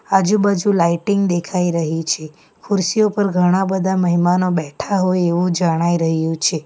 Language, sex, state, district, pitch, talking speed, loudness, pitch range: Gujarati, female, Gujarat, Valsad, 180 Hz, 145 wpm, -17 LUFS, 165-195 Hz